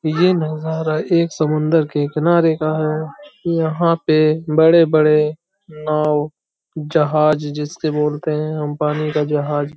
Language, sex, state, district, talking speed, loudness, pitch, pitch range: Hindi, male, Uttar Pradesh, Hamirpur, 130 wpm, -17 LUFS, 155 Hz, 150-160 Hz